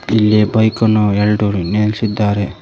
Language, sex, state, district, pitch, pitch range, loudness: Kannada, male, Karnataka, Koppal, 105 Hz, 105-110 Hz, -14 LUFS